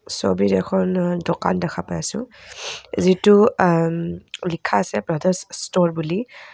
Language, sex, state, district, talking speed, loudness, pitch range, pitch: Assamese, female, Assam, Kamrup Metropolitan, 130 wpm, -20 LUFS, 165-185 Hz, 175 Hz